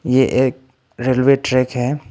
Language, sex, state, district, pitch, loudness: Hindi, male, Arunachal Pradesh, Papum Pare, 130 Hz, -17 LUFS